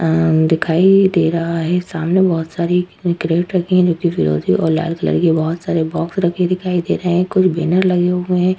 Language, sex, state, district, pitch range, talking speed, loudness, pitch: Hindi, female, Uttar Pradesh, Jalaun, 165-180 Hz, 210 wpm, -16 LUFS, 175 Hz